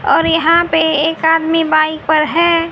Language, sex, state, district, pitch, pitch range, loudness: Hindi, female, Haryana, Rohtak, 325 Hz, 315-330 Hz, -13 LUFS